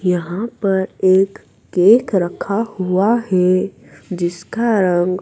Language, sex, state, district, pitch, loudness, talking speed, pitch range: Hindi, female, Madhya Pradesh, Dhar, 185 Hz, -17 LUFS, 105 wpm, 180-205 Hz